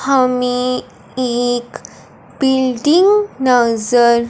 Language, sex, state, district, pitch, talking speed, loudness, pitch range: Hindi, female, Punjab, Fazilka, 250 Hz, 55 wpm, -15 LUFS, 245-265 Hz